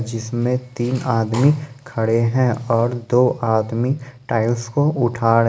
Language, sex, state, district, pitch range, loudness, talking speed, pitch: Hindi, male, Jharkhand, Ranchi, 115-130 Hz, -19 LUFS, 120 wpm, 120 Hz